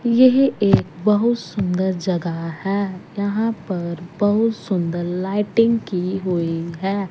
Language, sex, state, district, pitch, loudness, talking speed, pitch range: Hindi, female, Punjab, Pathankot, 195 Hz, -20 LUFS, 120 wpm, 175-210 Hz